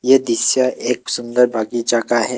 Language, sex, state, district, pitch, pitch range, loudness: Hindi, male, Assam, Kamrup Metropolitan, 120 Hz, 115-125 Hz, -17 LUFS